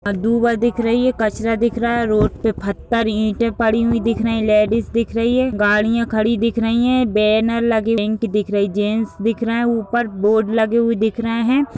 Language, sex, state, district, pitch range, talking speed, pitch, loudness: Hindi, female, Uttar Pradesh, Etah, 215-235 Hz, 205 wpm, 230 Hz, -18 LUFS